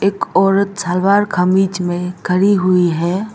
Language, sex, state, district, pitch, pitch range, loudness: Hindi, female, Arunachal Pradesh, Lower Dibang Valley, 190 Hz, 180-200 Hz, -15 LUFS